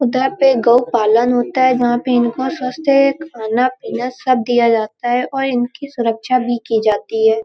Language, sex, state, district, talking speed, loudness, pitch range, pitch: Hindi, female, Uttar Pradesh, Hamirpur, 170 wpm, -16 LUFS, 235-260 Hz, 245 Hz